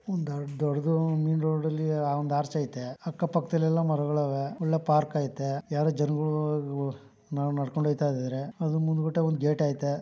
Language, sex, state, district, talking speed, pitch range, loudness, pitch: Kannada, male, Karnataka, Mysore, 150 wpm, 145-160 Hz, -28 LUFS, 150 Hz